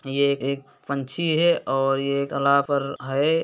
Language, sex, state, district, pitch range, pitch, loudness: Hindi, male, Uttar Pradesh, Hamirpur, 135-140 Hz, 140 Hz, -23 LUFS